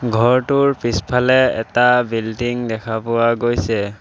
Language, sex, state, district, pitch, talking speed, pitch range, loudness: Assamese, male, Assam, Sonitpur, 120 Hz, 105 wpm, 110-125 Hz, -17 LUFS